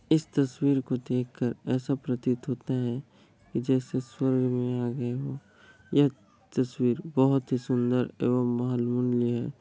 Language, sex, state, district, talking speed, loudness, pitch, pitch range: Hindi, male, Bihar, Kishanganj, 125 wpm, -28 LUFS, 125 Hz, 120-135 Hz